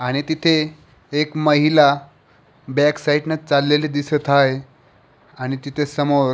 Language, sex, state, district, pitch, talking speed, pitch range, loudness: Marathi, male, Maharashtra, Pune, 145 Hz, 130 wpm, 140-150 Hz, -18 LUFS